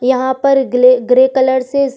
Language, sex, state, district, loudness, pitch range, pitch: Hindi, female, Uttar Pradesh, Jyotiba Phule Nagar, -12 LUFS, 255-265 Hz, 260 Hz